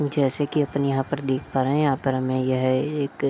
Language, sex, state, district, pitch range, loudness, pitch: Hindi, male, Bihar, Darbhanga, 130-145 Hz, -23 LUFS, 140 Hz